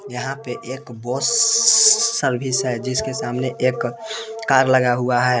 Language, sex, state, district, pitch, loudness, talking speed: Hindi, male, Jharkhand, Palamu, 130 Hz, -18 LUFS, 145 wpm